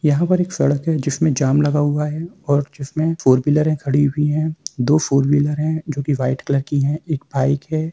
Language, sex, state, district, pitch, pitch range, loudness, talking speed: Hindi, male, Bihar, Samastipur, 145 Hz, 140-155 Hz, -19 LUFS, 240 wpm